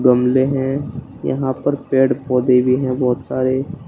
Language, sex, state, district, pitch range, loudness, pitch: Hindi, male, Uttar Pradesh, Shamli, 130-135 Hz, -17 LUFS, 130 Hz